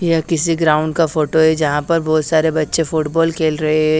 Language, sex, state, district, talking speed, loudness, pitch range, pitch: Hindi, female, Haryana, Charkhi Dadri, 225 wpm, -16 LUFS, 155-165 Hz, 160 Hz